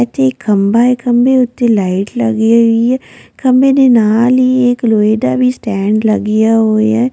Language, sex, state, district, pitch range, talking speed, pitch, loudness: Punjabi, female, Delhi, New Delhi, 215-250 Hz, 170 wpm, 230 Hz, -11 LUFS